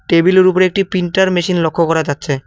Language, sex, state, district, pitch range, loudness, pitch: Bengali, male, West Bengal, Cooch Behar, 165-185 Hz, -13 LUFS, 175 Hz